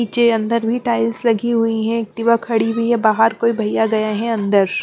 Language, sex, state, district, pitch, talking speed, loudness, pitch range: Hindi, female, Punjab, Pathankot, 230 Hz, 225 wpm, -17 LUFS, 220-235 Hz